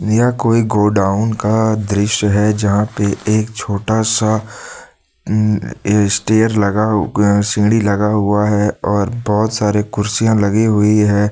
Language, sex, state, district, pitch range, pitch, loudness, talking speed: Hindi, male, Jharkhand, Deoghar, 105-110 Hz, 105 Hz, -15 LUFS, 140 wpm